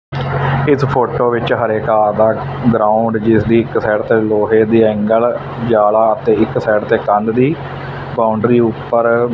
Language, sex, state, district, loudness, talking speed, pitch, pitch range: Punjabi, male, Punjab, Fazilka, -14 LUFS, 150 wpm, 115 Hz, 110-125 Hz